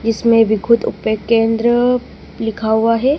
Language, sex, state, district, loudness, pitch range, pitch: Hindi, female, Madhya Pradesh, Dhar, -15 LUFS, 220-235 Hz, 230 Hz